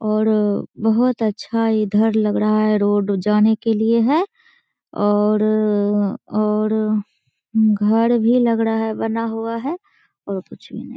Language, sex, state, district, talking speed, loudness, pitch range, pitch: Hindi, female, Bihar, Begusarai, 140 wpm, -18 LUFS, 210-230 Hz, 220 Hz